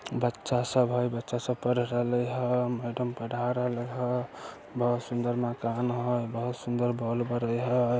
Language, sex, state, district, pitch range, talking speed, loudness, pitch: Maithili, male, Bihar, Samastipur, 120-125 Hz, 160 wpm, -30 LUFS, 120 Hz